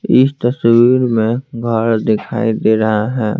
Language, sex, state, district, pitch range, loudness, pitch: Hindi, male, Bihar, Patna, 110-120 Hz, -14 LUFS, 115 Hz